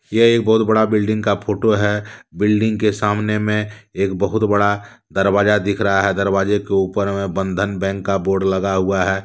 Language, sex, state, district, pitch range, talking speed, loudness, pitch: Hindi, male, Jharkhand, Deoghar, 95-105 Hz, 190 wpm, -18 LUFS, 100 Hz